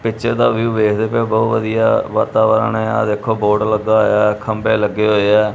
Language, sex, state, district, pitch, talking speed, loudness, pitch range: Punjabi, male, Punjab, Kapurthala, 110 Hz, 195 wpm, -15 LUFS, 105-110 Hz